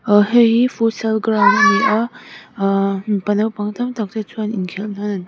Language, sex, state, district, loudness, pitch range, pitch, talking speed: Mizo, female, Mizoram, Aizawl, -17 LUFS, 200-225 Hz, 215 Hz, 180 wpm